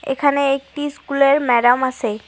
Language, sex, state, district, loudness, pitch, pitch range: Bengali, female, West Bengal, Cooch Behar, -17 LUFS, 275 Hz, 250-285 Hz